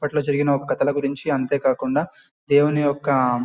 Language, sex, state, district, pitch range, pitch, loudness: Telugu, male, Karnataka, Bellary, 140-145 Hz, 140 Hz, -21 LUFS